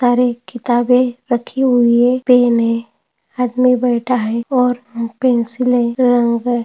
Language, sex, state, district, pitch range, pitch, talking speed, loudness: Hindi, female, Maharashtra, Solapur, 235-250 Hz, 245 Hz, 125 wpm, -15 LUFS